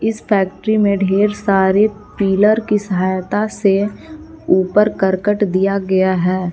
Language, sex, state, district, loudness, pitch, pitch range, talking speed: Hindi, female, Jharkhand, Palamu, -16 LUFS, 200 Hz, 190-210 Hz, 130 wpm